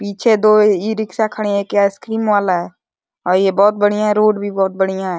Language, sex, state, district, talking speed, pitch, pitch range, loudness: Hindi, male, Uttar Pradesh, Deoria, 210 wpm, 205 Hz, 195-215 Hz, -15 LUFS